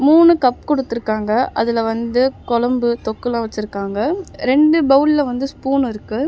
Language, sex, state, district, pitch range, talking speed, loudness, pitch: Tamil, female, Tamil Nadu, Chennai, 230-275 Hz, 125 wpm, -17 LUFS, 250 Hz